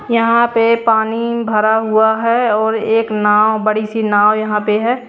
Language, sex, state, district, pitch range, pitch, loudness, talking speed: Hindi, female, Bihar, Kaimur, 215-230 Hz, 220 Hz, -14 LUFS, 175 wpm